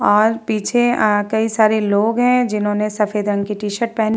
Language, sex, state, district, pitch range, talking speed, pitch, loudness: Hindi, female, Bihar, Vaishali, 210-225 Hz, 200 wpm, 215 Hz, -17 LUFS